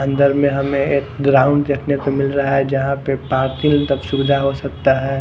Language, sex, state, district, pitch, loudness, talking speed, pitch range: Hindi, female, Himachal Pradesh, Shimla, 140 Hz, -17 LUFS, 195 wpm, 135-140 Hz